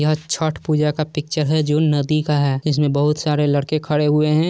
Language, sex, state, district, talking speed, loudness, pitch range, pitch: Hindi, male, Bihar, Saran, 225 wpm, -19 LUFS, 150-155 Hz, 150 Hz